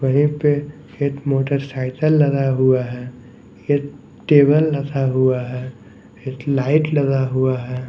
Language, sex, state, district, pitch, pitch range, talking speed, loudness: Hindi, male, Maharashtra, Mumbai Suburban, 135 Hz, 130-145 Hz, 130 wpm, -18 LUFS